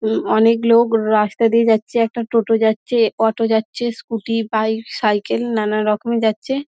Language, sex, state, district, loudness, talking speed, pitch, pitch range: Bengali, female, West Bengal, Dakshin Dinajpur, -17 LUFS, 145 wpm, 225 Hz, 220-230 Hz